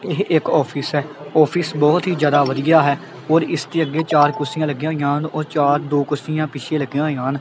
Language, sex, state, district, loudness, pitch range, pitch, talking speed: Punjabi, male, Punjab, Kapurthala, -18 LUFS, 145-160 Hz, 150 Hz, 220 wpm